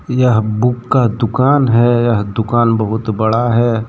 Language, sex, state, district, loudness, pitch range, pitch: Hindi, male, Jharkhand, Deoghar, -14 LUFS, 110-120 Hz, 120 Hz